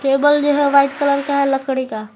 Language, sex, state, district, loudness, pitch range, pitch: Hindi, female, Jharkhand, Garhwa, -16 LUFS, 270-285 Hz, 280 Hz